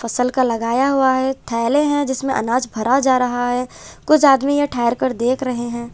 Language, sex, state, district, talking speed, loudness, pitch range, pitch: Hindi, female, Punjab, Kapurthala, 210 wpm, -18 LUFS, 240-270 Hz, 255 Hz